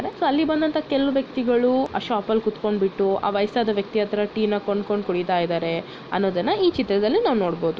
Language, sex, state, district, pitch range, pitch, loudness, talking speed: Kannada, female, Karnataka, Bellary, 195-255 Hz, 210 Hz, -22 LUFS, 160 wpm